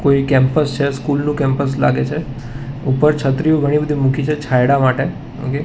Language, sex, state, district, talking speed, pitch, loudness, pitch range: Gujarati, male, Gujarat, Gandhinagar, 190 wpm, 140 Hz, -16 LUFS, 135-145 Hz